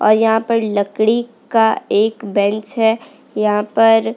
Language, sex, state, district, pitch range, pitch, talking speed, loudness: Hindi, female, Uttarakhand, Uttarkashi, 210-225 Hz, 220 Hz, 160 wpm, -16 LUFS